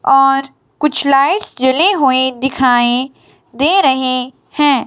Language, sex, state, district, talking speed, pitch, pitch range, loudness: Hindi, male, Himachal Pradesh, Shimla, 110 wpm, 270 Hz, 260-295 Hz, -13 LUFS